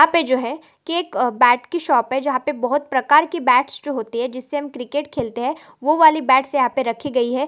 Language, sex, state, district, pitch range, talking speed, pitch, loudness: Hindi, female, Goa, North and South Goa, 250-300 Hz, 265 wpm, 275 Hz, -19 LUFS